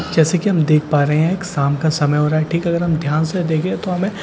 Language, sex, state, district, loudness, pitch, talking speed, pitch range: Hindi, male, Bihar, Katihar, -17 LUFS, 160 Hz, 325 wpm, 150-180 Hz